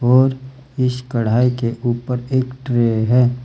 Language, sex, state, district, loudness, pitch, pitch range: Hindi, male, Uttar Pradesh, Saharanpur, -18 LUFS, 125 Hz, 120-130 Hz